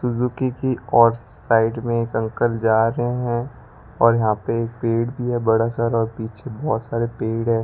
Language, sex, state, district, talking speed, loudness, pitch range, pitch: Hindi, male, Rajasthan, Bikaner, 195 wpm, -21 LUFS, 115-120 Hz, 115 Hz